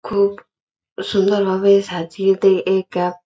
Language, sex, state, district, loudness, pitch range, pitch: Bengali, female, West Bengal, Purulia, -17 LUFS, 180-200 Hz, 195 Hz